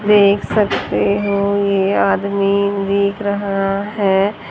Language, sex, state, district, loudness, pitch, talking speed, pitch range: Hindi, female, Haryana, Jhajjar, -16 LUFS, 200 Hz, 105 wpm, 195-200 Hz